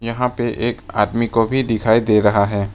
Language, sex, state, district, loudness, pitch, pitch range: Hindi, male, Arunachal Pradesh, Papum Pare, -17 LUFS, 115 Hz, 105-120 Hz